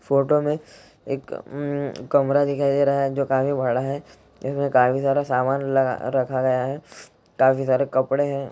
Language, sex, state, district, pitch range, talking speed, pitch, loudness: Hindi, male, Bihar, Jahanabad, 130-140 Hz, 160 wpm, 135 Hz, -22 LUFS